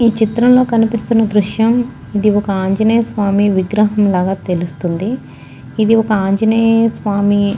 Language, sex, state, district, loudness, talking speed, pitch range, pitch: Telugu, female, Andhra Pradesh, Guntur, -14 LUFS, 135 wpm, 200-225 Hz, 210 Hz